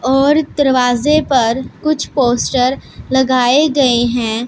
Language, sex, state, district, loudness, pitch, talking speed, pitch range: Hindi, female, Punjab, Pathankot, -14 LUFS, 260 Hz, 105 wpm, 245-285 Hz